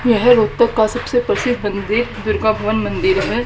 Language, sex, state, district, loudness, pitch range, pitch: Hindi, female, Haryana, Rohtak, -16 LUFS, 210-240 Hz, 220 Hz